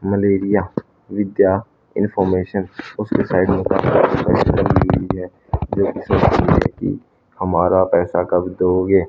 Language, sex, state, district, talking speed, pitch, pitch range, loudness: Hindi, male, Haryana, Rohtak, 65 wpm, 95 Hz, 90-100 Hz, -18 LUFS